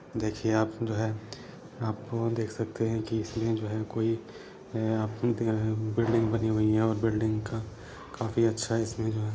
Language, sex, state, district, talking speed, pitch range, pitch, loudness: Hindi, male, Uttar Pradesh, Deoria, 180 wpm, 110-115 Hz, 110 Hz, -30 LUFS